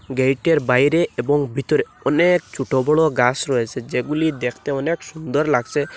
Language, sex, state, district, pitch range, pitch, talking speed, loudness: Bengali, male, Assam, Hailakandi, 130-160 Hz, 145 Hz, 140 wpm, -19 LUFS